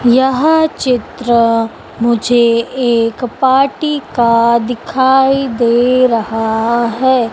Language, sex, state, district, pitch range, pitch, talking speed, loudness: Hindi, female, Madhya Pradesh, Dhar, 230-260 Hz, 245 Hz, 80 wpm, -13 LUFS